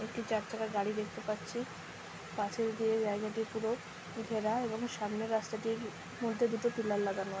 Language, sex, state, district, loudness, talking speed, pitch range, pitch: Bengali, female, West Bengal, Jhargram, -36 LUFS, 160 wpm, 215-225 Hz, 220 Hz